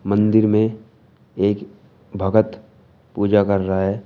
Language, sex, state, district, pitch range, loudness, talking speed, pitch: Hindi, male, Uttar Pradesh, Shamli, 100-110 Hz, -19 LUFS, 120 wpm, 105 Hz